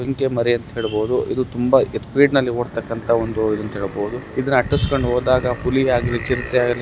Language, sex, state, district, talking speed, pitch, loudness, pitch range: Kannada, male, Karnataka, Gulbarga, 165 wpm, 120 Hz, -19 LUFS, 115-130 Hz